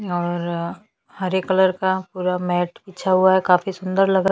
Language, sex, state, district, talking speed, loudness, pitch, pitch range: Hindi, female, Chhattisgarh, Bastar, 165 wpm, -20 LUFS, 185 Hz, 180-190 Hz